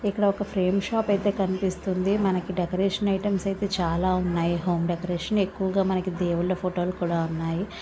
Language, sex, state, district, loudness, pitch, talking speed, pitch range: Telugu, female, Andhra Pradesh, Visakhapatnam, -26 LUFS, 185 Hz, 155 wpm, 175-195 Hz